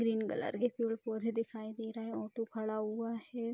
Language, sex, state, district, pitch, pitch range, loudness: Hindi, female, Bihar, Vaishali, 225 Hz, 220-230 Hz, -38 LUFS